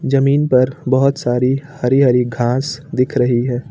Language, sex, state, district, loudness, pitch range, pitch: Hindi, male, Uttar Pradesh, Lucknow, -16 LUFS, 125-140 Hz, 130 Hz